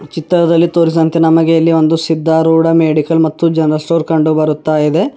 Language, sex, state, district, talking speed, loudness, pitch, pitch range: Kannada, male, Karnataka, Bidar, 140 wpm, -12 LUFS, 160 Hz, 155-165 Hz